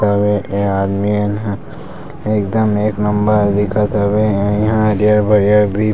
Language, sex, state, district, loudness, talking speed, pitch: Chhattisgarhi, male, Chhattisgarh, Sarguja, -15 LUFS, 150 wpm, 105 Hz